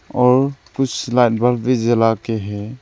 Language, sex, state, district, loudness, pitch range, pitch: Hindi, male, Arunachal Pradesh, Lower Dibang Valley, -17 LUFS, 115-125 Hz, 120 Hz